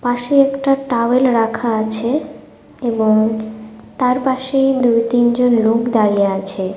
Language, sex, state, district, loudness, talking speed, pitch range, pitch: Bengali, female, Tripura, West Tripura, -16 LUFS, 125 wpm, 220-260 Hz, 235 Hz